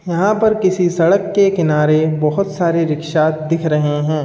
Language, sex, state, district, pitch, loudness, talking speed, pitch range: Hindi, male, Uttar Pradesh, Budaun, 165 Hz, -15 LUFS, 170 wpm, 155-190 Hz